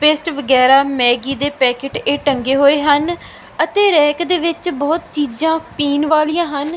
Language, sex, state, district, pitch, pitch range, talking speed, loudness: Punjabi, female, Punjab, Fazilka, 295 Hz, 280-320 Hz, 160 wpm, -15 LUFS